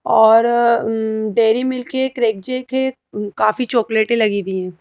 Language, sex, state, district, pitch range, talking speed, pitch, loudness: Hindi, female, Madhya Pradesh, Bhopal, 220-250 Hz, 135 wpm, 225 Hz, -17 LUFS